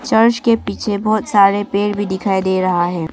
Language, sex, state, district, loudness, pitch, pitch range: Hindi, female, Arunachal Pradesh, Longding, -16 LUFS, 205 Hz, 190-215 Hz